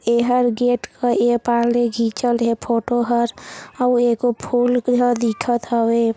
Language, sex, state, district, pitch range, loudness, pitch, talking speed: Chhattisgarhi, female, Chhattisgarh, Sarguja, 235-245 Hz, -19 LUFS, 240 Hz, 165 wpm